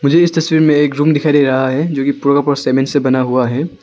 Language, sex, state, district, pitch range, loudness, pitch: Hindi, male, Arunachal Pradesh, Longding, 135-150 Hz, -13 LUFS, 145 Hz